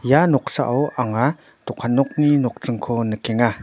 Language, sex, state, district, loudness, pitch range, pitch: Garo, male, Meghalaya, North Garo Hills, -20 LUFS, 120-145 Hz, 125 Hz